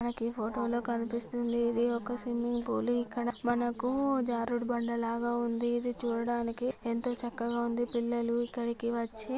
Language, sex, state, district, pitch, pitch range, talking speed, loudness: Telugu, female, Andhra Pradesh, Guntur, 240 Hz, 235-240 Hz, 140 wpm, -33 LUFS